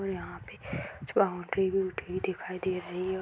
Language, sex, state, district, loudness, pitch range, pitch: Hindi, female, Uttar Pradesh, Budaun, -32 LUFS, 180-190 Hz, 185 Hz